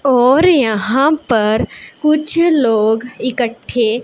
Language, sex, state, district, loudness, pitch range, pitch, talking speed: Hindi, female, Punjab, Pathankot, -14 LUFS, 225-300 Hz, 250 Hz, 90 wpm